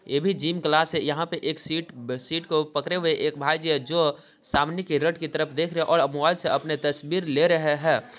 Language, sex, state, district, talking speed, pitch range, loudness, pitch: Hindi, male, Bihar, Sitamarhi, 175 wpm, 145-165 Hz, -24 LUFS, 155 Hz